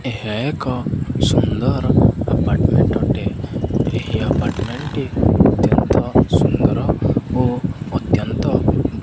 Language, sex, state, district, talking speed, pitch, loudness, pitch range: Odia, male, Odisha, Khordha, 100 wpm, 125 Hz, -18 LUFS, 120-135 Hz